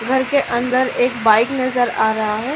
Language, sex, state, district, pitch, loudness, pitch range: Hindi, female, Maharashtra, Chandrapur, 245 Hz, -17 LUFS, 220-260 Hz